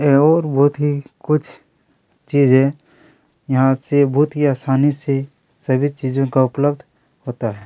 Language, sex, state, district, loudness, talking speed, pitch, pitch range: Hindi, male, Chhattisgarh, Kabirdham, -17 LUFS, 140 wpm, 140 Hz, 135-145 Hz